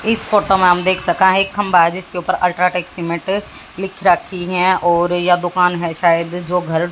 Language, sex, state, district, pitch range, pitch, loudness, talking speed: Hindi, female, Haryana, Jhajjar, 175-190 Hz, 180 Hz, -16 LUFS, 200 wpm